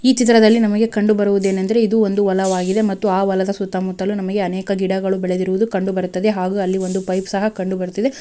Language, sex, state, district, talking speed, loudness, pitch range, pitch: Kannada, female, Karnataka, Raichur, 180 wpm, -18 LUFS, 190-215 Hz, 195 Hz